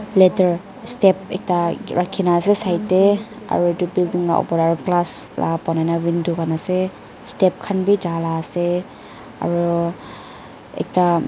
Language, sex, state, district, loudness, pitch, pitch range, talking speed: Nagamese, female, Nagaland, Dimapur, -19 LUFS, 180 Hz, 170-195 Hz, 145 wpm